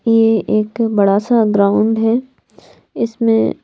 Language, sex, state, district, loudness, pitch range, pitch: Hindi, female, Bihar, Patna, -15 LUFS, 215-230 Hz, 225 Hz